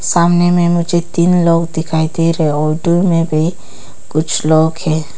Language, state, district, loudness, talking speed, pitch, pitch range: Hindi, Arunachal Pradesh, Papum Pare, -14 LUFS, 160 wpm, 165 Hz, 155-170 Hz